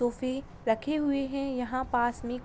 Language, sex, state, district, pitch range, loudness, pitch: Hindi, female, Jharkhand, Sahebganj, 240-275 Hz, -30 LUFS, 255 Hz